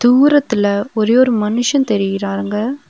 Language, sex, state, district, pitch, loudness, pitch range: Tamil, female, Tamil Nadu, Nilgiris, 225 Hz, -15 LUFS, 205-255 Hz